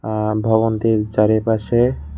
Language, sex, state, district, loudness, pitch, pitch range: Bengali, male, Tripura, West Tripura, -17 LUFS, 110 Hz, 105-115 Hz